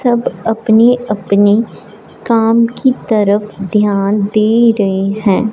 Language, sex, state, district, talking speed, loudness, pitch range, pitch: Hindi, male, Punjab, Fazilka, 110 wpm, -12 LUFS, 205-230 Hz, 215 Hz